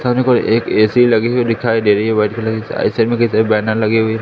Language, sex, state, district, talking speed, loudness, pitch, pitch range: Hindi, male, Madhya Pradesh, Katni, 240 wpm, -14 LUFS, 115 Hz, 110-120 Hz